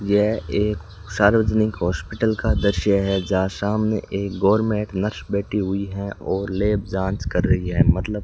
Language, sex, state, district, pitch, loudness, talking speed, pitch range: Hindi, male, Rajasthan, Bikaner, 100 Hz, -21 LUFS, 170 wpm, 95-105 Hz